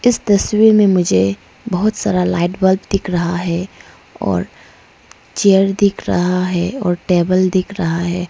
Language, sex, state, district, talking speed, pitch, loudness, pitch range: Hindi, female, Arunachal Pradesh, Lower Dibang Valley, 150 wpm, 185 Hz, -15 LUFS, 175-200 Hz